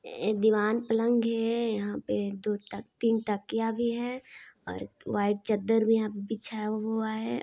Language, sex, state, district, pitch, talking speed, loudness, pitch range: Hindi, female, Chhattisgarh, Sarguja, 220 Hz, 170 wpm, -29 LUFS, 210-230 Hz